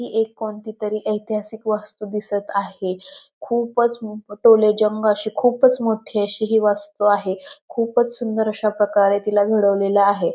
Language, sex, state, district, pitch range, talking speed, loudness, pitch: Marathi, female, Maharashtra, Pune, 205-225 Hz, 135 wpm, -20 LUFS, 215 Hz